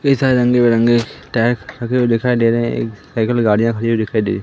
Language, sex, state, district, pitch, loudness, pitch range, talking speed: Hindi, male, Madhya Pradesh, Katni, 115 Hz, -16 LUFS, 115-125 Hz, 255 wpm